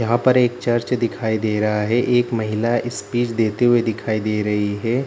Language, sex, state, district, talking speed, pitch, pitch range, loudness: Hindi, male, Bihar, Jahanabad, 200 wpm, 115 Hz, 110-120 Hz, -19 LUFS